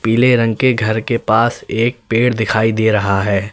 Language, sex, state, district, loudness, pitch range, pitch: Hindi, male, Uttar Pradesh, Lalitpur, -15 LUFS, 110-120 Hz, 110 Hz